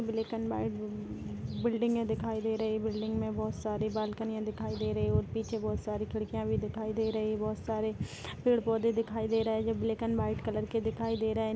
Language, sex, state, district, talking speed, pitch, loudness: Hindi, female, Chhattisgarh, Jashpur, 235 wpm, 220 Hz, -33 LUFS